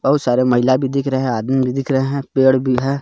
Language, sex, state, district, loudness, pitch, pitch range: Hindi, male, Jharkhand, Garhwa, -17 LUFS, 130 Hz, 130-135 Hz